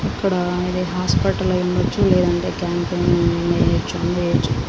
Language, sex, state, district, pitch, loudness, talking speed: Telugu, female, Andhra Pradesh, Srikakulam, 165 Hz, -19 LUFS, 100 wpm